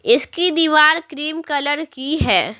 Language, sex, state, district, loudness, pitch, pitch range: Hindi, female, Bihar, Patna, -16 LUFS, 310 Hz, 295-330 Hz